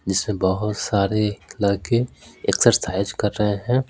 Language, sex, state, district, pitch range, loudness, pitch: Hindi, male, Bihar, Patna, 100-105 Hz, -21 LUFS, 105 Hz